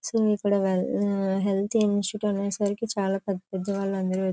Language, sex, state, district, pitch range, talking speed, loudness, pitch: Telugu, female, Andhra Pradesh, Chittoor, 195-205 Hz, 140 wpm, -26 LUFS, 200 Hz